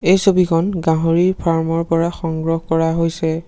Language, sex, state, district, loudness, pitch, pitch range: Assamese, male, Assam, Sonitpur, -17 LUFS, 165 Hz, 165-175 Hz